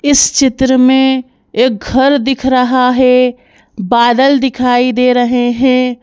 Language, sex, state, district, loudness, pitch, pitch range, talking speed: Hindi, female, Madhya Pradesh, Bhopal, -11 LUFS, 255 Hz, 245-265 Hz, 130 wpm